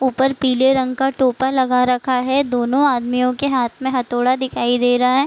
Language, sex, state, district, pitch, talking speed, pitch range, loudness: Hindi, female, Bihar, Sitamarhi, 255 Hz, 205 wpm, 250-265 Hz, -17 LUFS